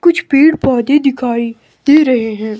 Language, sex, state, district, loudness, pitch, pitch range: Hindi, male, Himachal Pradesh, Shimla, -12 LUFS, 260 Hz, 235-295 Hz